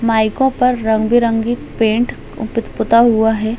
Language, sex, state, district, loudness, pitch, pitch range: Hindi, female, Chhattisgarh, Balrampur, -15 LUFS, 230 Hz, 220-240 Hz